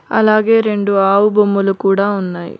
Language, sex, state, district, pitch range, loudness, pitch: Telugu, female, Telangana, Mahabubabad, 195-215 Hz, -13 LUFS, 200 Hz